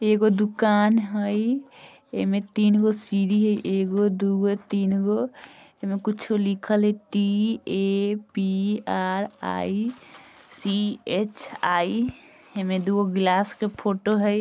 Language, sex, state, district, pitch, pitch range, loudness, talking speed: Bajjika, female, Bihar, Vaishali, 205 Hz, 195-215 Hz, -24 LUFS, 120 wpm